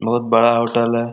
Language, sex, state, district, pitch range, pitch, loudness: Hindi, male, Uttar Pradesh, Etah, 115-120 Hz, 115 Hz, -16 LUFS